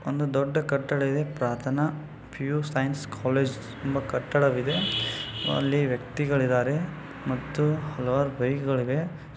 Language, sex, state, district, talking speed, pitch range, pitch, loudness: Kannada, male, Karnataka, Bijapur, 95 wpm, 130-145 Hz, 140 Hz, -27 LUFS